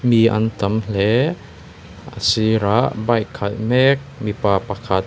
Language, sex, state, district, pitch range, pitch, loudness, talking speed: Mizo, male, Mizoram, Aizawl, 100-120 Hz, 110 Hz, -18 LUFS, 130 wpm